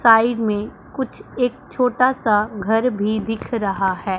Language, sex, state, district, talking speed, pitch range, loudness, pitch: Hindi, female, Punjab, Pathankot, 155 wpm, 210-250 Hz, -20 LUFS, 225 Hz